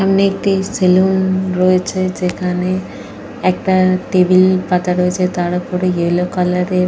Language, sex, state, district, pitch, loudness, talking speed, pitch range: Bengali, female, Jharkhand, Jamtara, 185 Hz, -15 LUFS, 120 wpm, 180-185 Hz